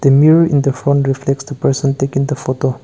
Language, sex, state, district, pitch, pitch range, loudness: English, male, Nagaland, Kohima, 140 Hz, 135-145 Hz, -14 LUFS